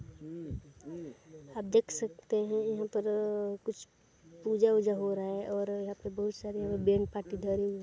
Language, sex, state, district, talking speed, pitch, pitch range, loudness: Hindi, female, Chhattisgarh, Balrampur, 160 wpm, 200 Hz, 195-210 Hz, -33 LUFS